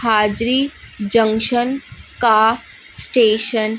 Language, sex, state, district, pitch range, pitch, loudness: Hindi, female, Chhattisgarh, Raipur, 220-240 Hz, 225 Hz, -16 LUFS